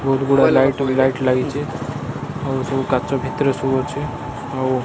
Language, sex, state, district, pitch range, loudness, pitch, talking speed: Odia, male, Odisha, Malkangiri, 130-140 Hz, -19 LUFS, 135 Hz, 150 wpm